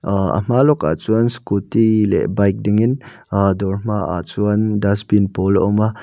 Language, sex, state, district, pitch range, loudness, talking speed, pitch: Mizo, male, Mizoram, Aizawl, 100-110 Hz, -17 LUFS, 170 wpm, 105 Hz